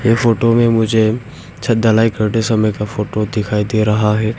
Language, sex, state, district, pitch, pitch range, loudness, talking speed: Hindi, male, Arunachal Pradesh, Longding, 110 Hz, 105-115 Hz, -15 LUFS, 190 wpm